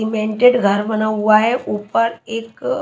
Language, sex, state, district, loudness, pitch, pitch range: Hindi, female, Haryana, Charkhi Dadri, -17 LUFS, 220 Hz, 215-230 Hz